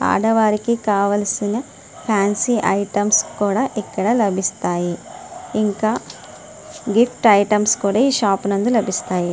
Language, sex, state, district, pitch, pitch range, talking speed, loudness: Telugu, female, Andhra Pradesh, Srikakulam, 210 Hz, 200-235 Hz, 95 wpm, -18 LUFS